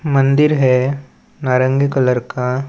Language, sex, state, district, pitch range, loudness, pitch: Chhattisgarhi, male, Chhattisgarh, Balrampur, 125-140 Hz, -15 LUFS, 135 Hz